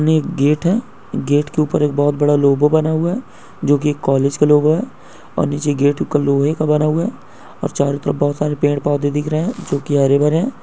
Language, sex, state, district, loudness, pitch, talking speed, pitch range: Hindi, male, West Bengal, North 24 Parganas, -17 LUFS, 150 Hz, 225 wpm, 145-155 Hz